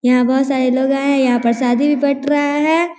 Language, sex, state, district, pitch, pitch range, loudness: Hindi, female, Bihar, Vaishali, 275 Hz, 250-290 Hz, -15 LUFS